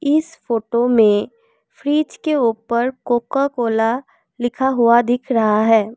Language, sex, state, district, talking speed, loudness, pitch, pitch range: Hindi, female, Assam, Kamrup Metropolitan, 120 wpm, -18 LUFS, 245 Hz, 230-285 Hz